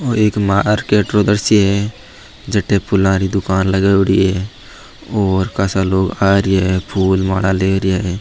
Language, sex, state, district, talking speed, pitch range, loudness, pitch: Marwari, male, Rajasthan, Nagaur, 170 wpm, 95-105 Hz, -15 LUFS, 95 Hz